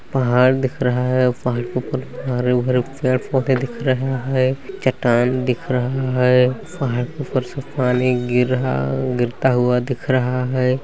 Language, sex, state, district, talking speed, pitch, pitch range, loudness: Hindi, male, Chhattisgarh, Balrampur, 160 wpm, 130 Hz, 125-130 Hz, -19 LUFS